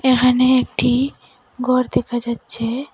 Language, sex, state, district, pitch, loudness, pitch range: Bengali, female, Assam, Hailakandi, 250 Hz, -18 LUFS, 240-255 Hz